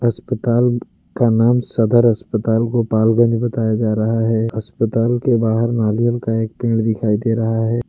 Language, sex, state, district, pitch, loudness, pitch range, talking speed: Hindi, male, Gujarat, Valsad, 115 Hz, -17 LUFS, 110-120 Hz, 160 wpm